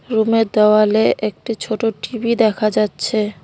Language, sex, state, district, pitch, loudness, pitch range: Bengali, female, West Bengal, Cooch Behar, 220 Hz, -17 LUFS, 215-225 Hz